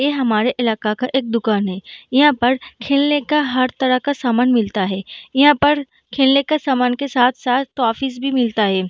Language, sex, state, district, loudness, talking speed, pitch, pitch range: Hindi, female, Bihar, Darbhanga, -17 LUFS, 190 wpm, 255 Hz, 230-280 Hz